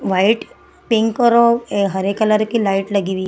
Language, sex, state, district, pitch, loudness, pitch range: Hindi, female, Bihar, Samastipur, 210 Hz, -16 LUFS, 195-230 Hz